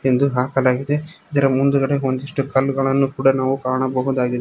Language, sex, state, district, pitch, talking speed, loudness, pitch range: Kannada, male, Karnataka, Koppal, 135 Hz, 120 wpm, -19 LUFS, 130-140 Hz